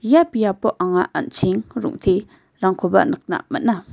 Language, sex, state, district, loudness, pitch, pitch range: Garo, female, Meghalaya, West Garo Hills, -20 LUFS, 205 Hz, 185-235 Hz